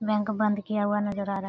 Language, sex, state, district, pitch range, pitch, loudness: Hindi, female, Bihar, Araria, 205-215 Hz, 210 Hz, -27 LUFS